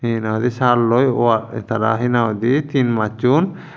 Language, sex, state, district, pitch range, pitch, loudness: Chakma, male, Tripura, Dhalai, 115-130 Hz, 120 Hz, -17 LUFS